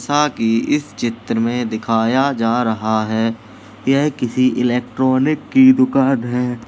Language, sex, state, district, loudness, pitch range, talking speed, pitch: Hindi, male, Uttar Pradesh, Jalaun, -17 LUFS, 115-130 Hz, 135 wpm, 120 Hz